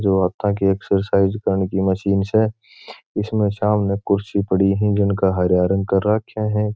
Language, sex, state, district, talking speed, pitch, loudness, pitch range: Marwari, male, Rajasthan, Churu, 170 wpm, 100 Hz, -19 LUFS, 95-105 Hz